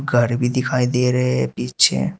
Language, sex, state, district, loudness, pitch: Hindi, male, Uttar Pradesh, Shamli, -19 LUFS, 125 Hz